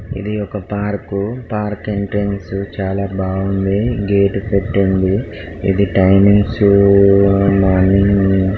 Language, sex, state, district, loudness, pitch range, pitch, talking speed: Telugu, male, Telangana, Karimnagar, -15 LUFS, 95-100 Hz, 100 Hz, 90 wpm